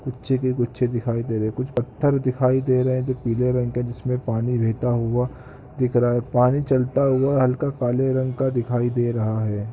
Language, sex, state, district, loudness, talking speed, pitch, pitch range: Hindi, male, Jharkhand, Sahebganj, -22 LUFS, 215 wpm, 125 Hz, 120-130 Hz